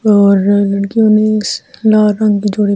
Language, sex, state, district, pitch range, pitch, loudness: Hindi, female, Delhi, New Delhi, 200-215 Hz, 210 Hz, -12 LUFS